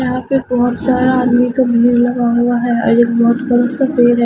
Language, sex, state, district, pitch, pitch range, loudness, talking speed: Hindi, female, Himachal Pradesh, Shimla, 245 Hz, 240-255 Hz, -13 LUFS, 210 wpm